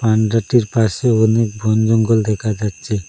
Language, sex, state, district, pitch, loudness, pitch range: Bengali, male, Assam, Hailakandi, 110 Hz, -16 LUFS, 105-115 Hz